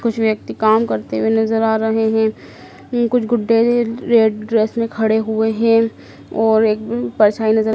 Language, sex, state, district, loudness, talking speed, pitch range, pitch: Hindi, female, Madhya Pradesh, Dhar, -16 LUFS, 155 wpm, 220-230 Hz, 220 Hz